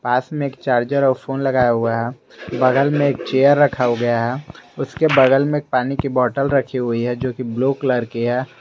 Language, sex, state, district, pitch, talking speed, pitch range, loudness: Hindi, male, Jharkhand, Garhwa, 130 Hz, 210 wpm, 125-140 Hz, -18 LUFS